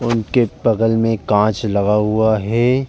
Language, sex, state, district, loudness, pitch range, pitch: Hindi, male, Uttar Pradesh, Jalaun, -16 LUFS, 105-115 Hz, 115 Hz